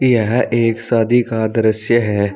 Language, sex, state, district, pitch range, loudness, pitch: Hindi, male, Uttar Pradesh, Saharanpur, 110-120 Hz, -16 LUFS, 115 Hz